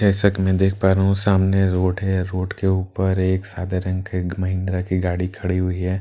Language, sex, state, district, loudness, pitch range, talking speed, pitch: Hindi, male, Bihar, Katihar, -21 LUFS, 90-95 Hz, 250 wpm, 95 Hz